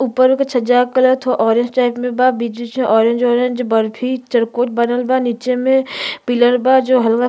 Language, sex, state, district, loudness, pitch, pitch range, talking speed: Bhojpuri, female, Uttar Pradesh, Ghazipur, -15 LUFS, 245 Hz, 240-255 Hz, 205 wpm